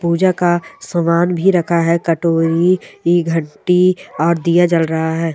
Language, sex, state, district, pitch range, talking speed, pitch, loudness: Hindi, female, Bihar, Sitamarhi, 165-175 Hz, 155 wpm, 170 Hz, -15 LUFS